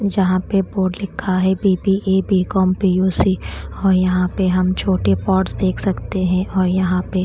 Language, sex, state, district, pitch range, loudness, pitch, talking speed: Hindi, female, Haryana, Charkhi Dadri, 185-190 Hz, -18 LUFS, 185 Hz, 215 wpm